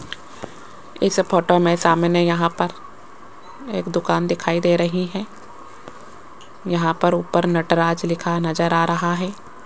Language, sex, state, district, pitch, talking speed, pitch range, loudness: Hindi, female, Rajasthan, Jaipur, 170 Hz, 130 wpm, 170-175 Hz, -20 LUFS